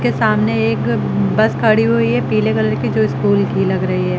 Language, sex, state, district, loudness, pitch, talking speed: Hindi, female, Uttar Pradesh, Lucknow, -15 LUFS, 105 Hz, 230 wpm